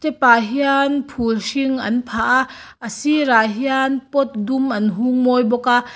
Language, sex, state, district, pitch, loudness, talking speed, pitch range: Mizo, female, Mizoram, Aizawl, 250 Hz, -17 LUFS, 170 wpm, 235-270 Hz